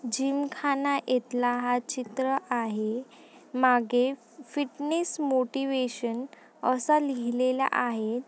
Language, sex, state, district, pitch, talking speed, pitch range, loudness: Marathi, female, Maharashtra, Nagpur, 255 Hz, 85 wpm, 245-275 Hz, -28 LUFS